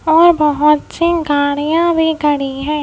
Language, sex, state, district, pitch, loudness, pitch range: Hindi, female, Madhya Pradesh, Bhopal, 300 Hz, -14 LUFS, 290-330 Hz